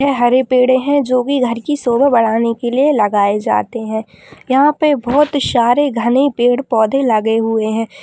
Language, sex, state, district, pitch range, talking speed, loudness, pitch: Hindi, female, Bihar, Lakhisarai, 225-280 Hz, 170 wpm, -14 LUFS, 245 Hz